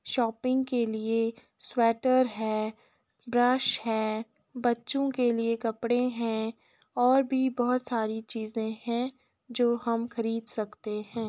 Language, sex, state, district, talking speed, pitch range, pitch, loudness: Hindi, female, Uttar Pradesh, Jalaun, 120 wpm, 225-250 Hz, 235 Hz, -29 LUFS